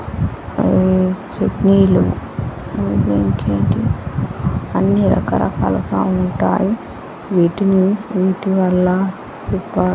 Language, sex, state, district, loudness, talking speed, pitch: Telugu, female, Andhra Pradesh, Srikakulam, -17 LUFS, 65 wpm, 180 Hz